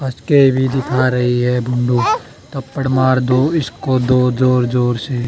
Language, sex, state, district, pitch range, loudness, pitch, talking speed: Hindi, male, Haryana, Charkhi Dadri, 125-130 Hz, -15 LUFS, 130 Hz, 150 wpm